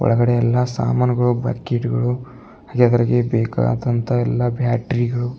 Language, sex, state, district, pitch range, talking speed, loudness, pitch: Kannada, male, Karnataka, Bidar, 120-125 Hz, 90 wpm, -19 LUFS, 120 Hz